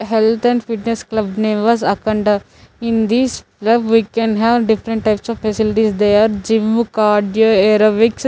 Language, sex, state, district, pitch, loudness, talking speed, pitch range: English, female, Chandigarh, Chandigarh, 220 Hz, -15 LUFS, 165 wpm, 215-230 Hz